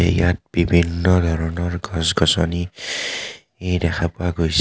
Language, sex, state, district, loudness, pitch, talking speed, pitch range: Assamese, male, Assam, Kamrup Metropolitan, -20 LUFS, 85 Hz, 115 wpm, 85-90 Hz